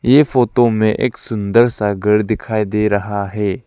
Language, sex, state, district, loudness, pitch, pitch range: Hindi, male, Arunachal Pradesh, Lower Dibang Valley, -16 LUFS, 110 Hz, 105-120 Hz